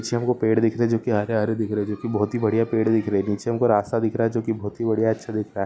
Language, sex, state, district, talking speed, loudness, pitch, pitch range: Hindi, male, Maharashtra, Solapur, 350 wpm, -23 LUFS, 110 Hz, 105-115 Hz